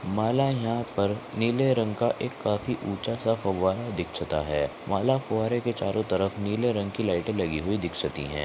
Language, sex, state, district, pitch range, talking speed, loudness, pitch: Hindi, male, Maharashtra, Chandrapur, 95-115 Hz, 170 wpm, -27 LUFS, 105 Hz